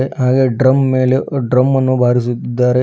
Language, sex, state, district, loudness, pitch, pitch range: Kannada, female, Karnataka, Bidar, -14 LUFS, 130 Hz, 125-130 Hz